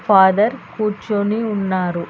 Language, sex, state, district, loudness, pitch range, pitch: Telugu, female, Telangana, Hyderabad, -18 LUFS, 190-215 Hz, 205 Hz